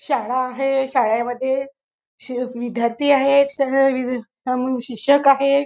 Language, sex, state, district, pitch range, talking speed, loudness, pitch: Marathi, female, Maharashtra, Chandrapur, 250-275 Hz, 85 wpm, -19 LUFS, 265 Hz